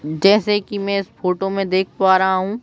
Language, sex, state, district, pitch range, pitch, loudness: Hindi, male, Madhya Pradesh, Bhopal, 185-200 Hz, 195 Hz, -18 LUFS